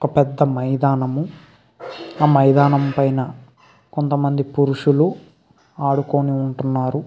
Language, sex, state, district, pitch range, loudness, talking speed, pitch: Telugu, male, Andhra Pradesh, Krishna, 135-145 Hz, -18 LUFS, 85 wpm, 140 Hz